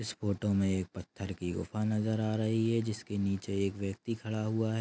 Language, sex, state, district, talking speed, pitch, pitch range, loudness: Hindi, male, Chhattisgarh, Raigarh, 225 wpm, 105 Hz, 100-110 Hz, -33 LUFS